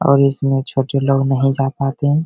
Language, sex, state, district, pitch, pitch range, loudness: Hindi, male, Bihar, Begusarai, 135 Hz, 135-140 Hz, -17 LUFS